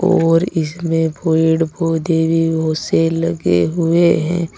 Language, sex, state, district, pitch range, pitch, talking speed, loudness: Hindi, male, Uttar Pradesh, Saharanpur, 155-165 Hz, 165 Hz, 130 wpm, -16 LUFS